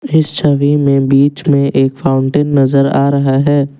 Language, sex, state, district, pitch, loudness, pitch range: Hindi, male, Assam, Kamrup Metropolitan, 140 Hz, -12 LUFS, 135-145 Hz